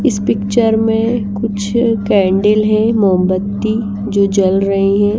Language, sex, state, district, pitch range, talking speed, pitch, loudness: Hindi, female, Bihar, Patna, 200-220 Hz, 125 wpm, 210 Hz, -14 LUFS